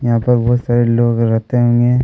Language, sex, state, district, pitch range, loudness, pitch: Hindi, male, Chhattisgarh, Kabirdham, 115-120 Hz, -14 LUFS, 120 Hz